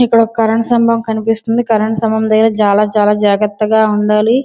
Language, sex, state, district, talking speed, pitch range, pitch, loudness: Telugu, female, Andhra Pradesh, Srikakulam, 160 wpm, 210-230 Hz, 220 Hz, -12 LUFS